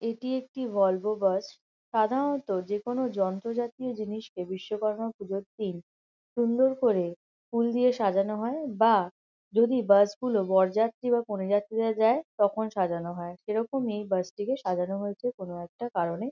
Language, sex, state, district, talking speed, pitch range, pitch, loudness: Bengali, female, West Bengal, Kolkata, 145 wpm, 195-240 Hz, 215 Hz, -28 LUFS